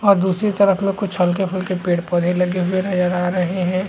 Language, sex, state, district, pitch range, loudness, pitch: Hindi, male, Bihar, Supaul, 180-190 Hz, -19 LUFS, 185 Hz